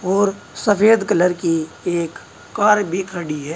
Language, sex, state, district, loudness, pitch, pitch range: Hindi, male, Uttar Pradesh, Saharanpur, -18 LUFS, 175 Hz, 165-205 Hz